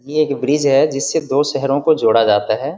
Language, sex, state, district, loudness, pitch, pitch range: Hindi, male, Bihar, Vaishali, -15 LUFS, 140 Hz, 130-150 Hz